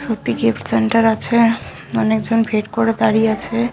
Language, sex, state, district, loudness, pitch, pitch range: Bengali, female, West Bengal, Malda, -16 LUFS, 225 Hz, 215-230 Hz